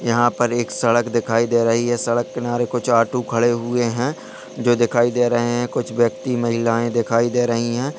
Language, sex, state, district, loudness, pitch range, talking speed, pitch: Hindi, male, Bihar, Purnia, -19 LUFS, 115-120 Hz, 205 wpm, 120 Hz